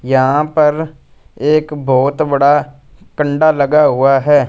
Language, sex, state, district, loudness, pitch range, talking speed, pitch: Hindi, male, Punjab, Fazilka, -13 LUFS, 135-150 Hz, 120 wpm, 145 Hz